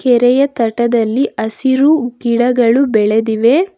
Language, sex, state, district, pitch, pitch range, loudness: Kannada, female, Karnataka, Bangalore, 245 Hz, 230-270 Hz, -13 LUFS